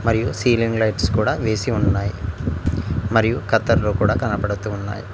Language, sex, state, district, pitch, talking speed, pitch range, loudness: Telugu, male, Telangana, Mahabubabad, 105 Hz, 130 wpm, 100-115 Hz, -20 LUFS